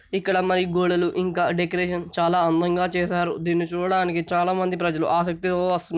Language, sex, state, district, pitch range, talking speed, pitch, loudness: Telugu, male, Telangana, Nalgonda, 175-180 Hz, 150 wpm, 175 Hz, -23 LUFS